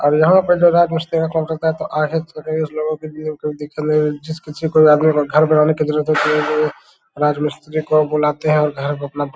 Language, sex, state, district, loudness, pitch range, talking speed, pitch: Hindi, male, Bihar, Saran, -17 LUFS, 150-155 Hz, 105 wpm, 155 Hz